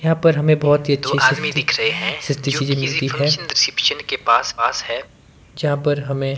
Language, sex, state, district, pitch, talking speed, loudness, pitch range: Hindi, male, Himachal Pradesh, Shimla, 145 Hz, 85 wpm, -18 LUFS, 140-150 Hz